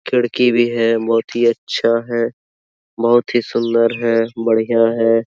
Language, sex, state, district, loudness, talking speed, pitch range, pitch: Hindi, male, Bihar, Araria, -16 LUFS, 150 wpm, 115-120 Hz, 115 Hz